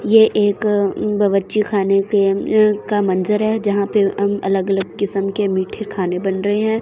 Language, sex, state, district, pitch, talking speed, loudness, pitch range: Hindi, female, Delhi, New Delhi, 200 Hz, 165 wpm, -17 LUFS, 195-210 Hz